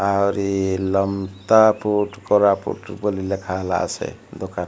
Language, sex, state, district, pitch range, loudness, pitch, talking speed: Odia, male, Odisha, Malkangiri, 95-105 Hz, -20 LUFS, 100 Hz, 115 wpm